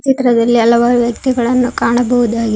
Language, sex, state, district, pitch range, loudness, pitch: Kannada, female, Karnataka, Koppal, 235-245 Hz, -12 LUFS, 240 Hz